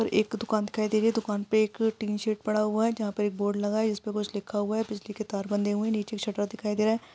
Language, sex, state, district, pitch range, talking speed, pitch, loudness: Hindi, female, Karnataka, Raichur, 205-220 Hz, 250 wpm, 215 Hz, -28 LUFS